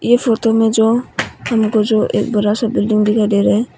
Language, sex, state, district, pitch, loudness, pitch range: Hindi, female, Arunachal Pradesh, Papum Pare, 220 Hz, -15 LUFS, 215-230 Hz